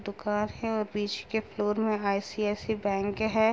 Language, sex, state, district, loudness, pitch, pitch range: Hindi, female, Uttar Pradesh, Gorakhpur, -30 LUFS, 210 Hz, 205-220 Hz